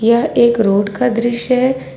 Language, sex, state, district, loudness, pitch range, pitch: Hindi, female, Jharkhand, Ranchi, -14 LUFS, 215-250 Hz, 235 Hz